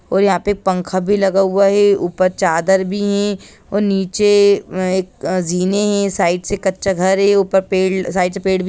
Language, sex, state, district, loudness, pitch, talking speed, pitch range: Hindi, female, Bihar, Sitamarhi, -16 LUFS, 190 Hz, 200 wpm, 185-200 Hz